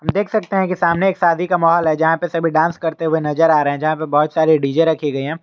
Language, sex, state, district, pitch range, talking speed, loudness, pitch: Hindi, male, Jharkhand, Garhwa, 155-170 Hz, 310 wpm, -16 LUFS, 165 Hz